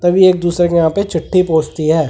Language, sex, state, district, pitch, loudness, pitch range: Hindi, male, Delhi, New Delhi, 175 Hz, -14 LUFS, 160-180 Hz